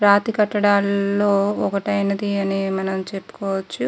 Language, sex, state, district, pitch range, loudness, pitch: Telugu, female, Andhra Pradesh, Guntur, 195-205 Hz, -20 LUFS, 200 Hz